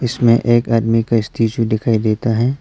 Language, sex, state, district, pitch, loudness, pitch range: Hindi, male, Arunachal Pradesh, Papum Pare, 115 Hz, -16 LUFS, 115-120 Hz